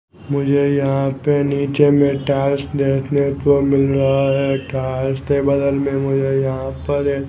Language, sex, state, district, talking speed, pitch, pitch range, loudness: Hindi, male, Chhattisgarh, Raipur, 165 wpm, 140 Hz, 135-140 Hz, -17 LUFS